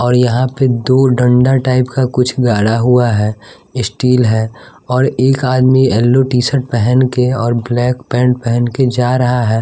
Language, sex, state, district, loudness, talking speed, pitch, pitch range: Hindi, male, Bihar, West Champaran, -13 LUFS, 180 wpm, 125 Hz, 120-130 Hz